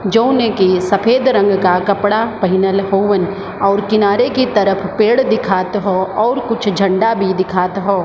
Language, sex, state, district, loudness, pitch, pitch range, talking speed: Hindi, female, Jharkhand, Sahebganj, -14 LUFS, 200 Hz, 190-225 Hz, 170 wpm